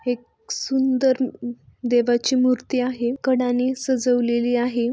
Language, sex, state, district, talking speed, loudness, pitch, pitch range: Marathi, female, Maharashtra, Sindhudurg, 110 wpm, -21 LUFS, 250 Hz, 240-260 Hz